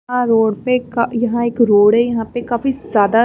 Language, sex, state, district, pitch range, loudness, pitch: Hindi, female, Haryana, Charkhi Dadri, 225-240 Hz, -16 LUFS, 235 Hz